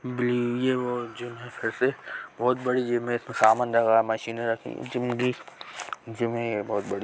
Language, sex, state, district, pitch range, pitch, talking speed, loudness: Hindi, male, Chhattisgarh, Bastar, 115-125 Hz, 120 Hz, 195 wpm, -27 LUFS